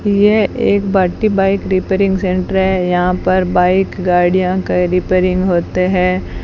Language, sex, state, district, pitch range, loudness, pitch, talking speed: Hindi, female, Rajasthan, Bikaner, 180-195 Hz, -14 LUFS, 185 Hz, 140 wpm